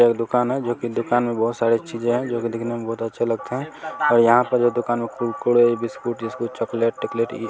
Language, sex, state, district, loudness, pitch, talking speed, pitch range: Maithili, male, Bihar, Begusarai, -21 LUFS, 120 Hz, 255 wpm, 115-120 Hz